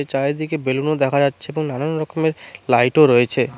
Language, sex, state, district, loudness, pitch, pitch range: Bengali, male, West Bengal, Cooch Behar, -18 LUFS, 140 Hz, 130-155 Hz